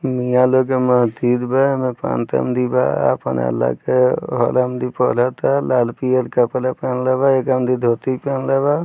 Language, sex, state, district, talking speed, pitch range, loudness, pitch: Bhojpuri, male, Bihar, Muzaffarpur, 140 wpm, 125-130 Hz, -18 LUFS, 125 Hz